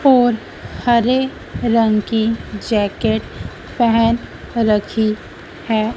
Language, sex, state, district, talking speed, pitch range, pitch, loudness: Hindi, female, Madhya Pradesh, Dhar, 80 wpm, 215-235 Hz, 230 Hz, -17 LUFS